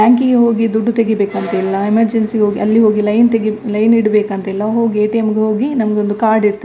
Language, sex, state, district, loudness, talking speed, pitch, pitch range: Kannada, female, Karnataka, Dakshina Kannada, -14 LUFS, 225 wpm, 215 Hz, 210-225 Hz